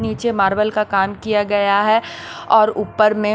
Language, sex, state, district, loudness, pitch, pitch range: Hindi, female, Maharashtra, Washim, -17 LUFS, 210 Hz, 200-215 Hz